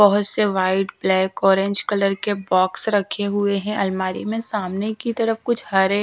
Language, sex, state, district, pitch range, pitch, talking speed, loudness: Hindi, female, Bihar, Patna, 190-210 Hz, 200 Hz, 180 wpm, -20 LUFS